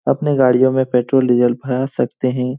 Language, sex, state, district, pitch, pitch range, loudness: Hindi, male, Bihar, Lakhisarai, 130 Hz, 125-130 Hz, -16 LUFS